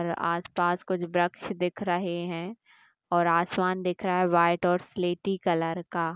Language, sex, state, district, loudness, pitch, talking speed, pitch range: Hindi, female, Uttar Pradesh, Gorakhpur, -27 LUFS, 175 Hz, 165 wpm, 170-185 Hz